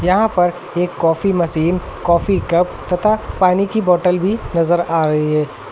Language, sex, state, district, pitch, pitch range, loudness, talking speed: Hindi, male, Uttar Pradesh, Lucknow, 175 Hz, 170-185 Hz, -16 LUFS, 170 wpm